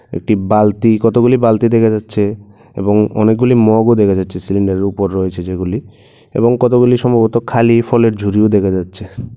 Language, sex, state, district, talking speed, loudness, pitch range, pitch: Bengali, male, Tripura, West Tripura, 145 wpm, -13 LUFS, 100-115 Hz, 110 Hz